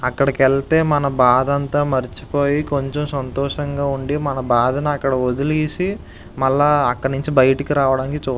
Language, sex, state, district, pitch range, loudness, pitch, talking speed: Telugu, male, Andhra Pradesh, Visakhapatnam, 130-145 Hz, -18 LUFS, 140 Hz, 130 wpm